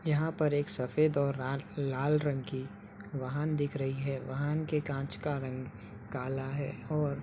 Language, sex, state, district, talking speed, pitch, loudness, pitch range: Hindi, male, Uttar Pradesh, Budaun, 185 wpm, 140 Hz, -34 LUFS, 130-150 Hz